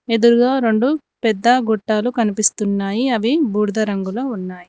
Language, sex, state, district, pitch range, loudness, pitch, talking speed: Telugu, female, Telangana, Mahabubabad, 210-245 Hz, -17 LUFS, 225 Hz, 115 wpm